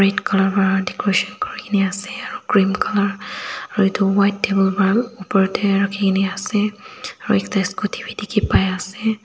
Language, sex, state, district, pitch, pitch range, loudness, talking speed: Nagamese, female, Nagaland, Dimapur, 200 Hz, 195-210 Hz, -19 LUFS, 170 wpm